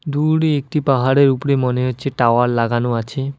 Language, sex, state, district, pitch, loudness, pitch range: Bengali, male, West Bengal, Alipurduar, 135 Hz, -17 LUFS, 120-140 Hz